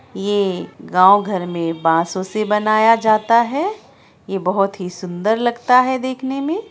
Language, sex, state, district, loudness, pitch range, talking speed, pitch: Hindi, female, Bihar, Araria, -17 LUFS, 185-240 Hz, 150 wpm, 210 Hz